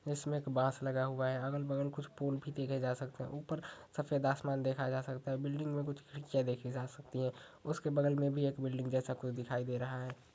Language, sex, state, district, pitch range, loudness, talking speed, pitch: Hindi, male, Uttar Pradesh, Ghazipur, 130-145 Hz, -38 LUFS, 235 wpm, 135 Hz